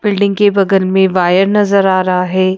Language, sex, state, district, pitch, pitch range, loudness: Hindi, female, Madhya Pradesh, Bhopal, 190 Hz, 185-200 Hz, -12 LUFS